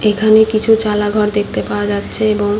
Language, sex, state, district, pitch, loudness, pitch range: Bengali, female, West Bengal, Paschim Medinipur, 210 Hz, -14 LUFS, 205-215 Hz